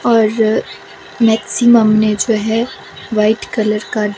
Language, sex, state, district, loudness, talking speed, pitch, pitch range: Hindi, female, Himachal Pradesh, Shimla, -14 LUFS, 115 wpm, 220 Hz, 215-230 Hz